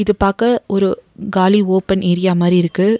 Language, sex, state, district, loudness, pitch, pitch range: Tamil, female, Tamil Nadu, Nilgiris, -15 LUFS, 195 Hz, 185-205 Hz